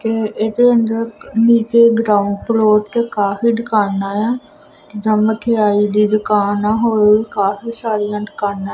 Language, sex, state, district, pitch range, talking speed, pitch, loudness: Punjabi, female, Punjab, Kapurthala, 210-230 Hz, 145 wpm, 215 Hz, -15 LUFS